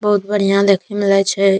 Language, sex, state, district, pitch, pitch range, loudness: Maithili, male, Bihar, Saharsa, 200 Hz, 195-205 Hz, -15 LUFS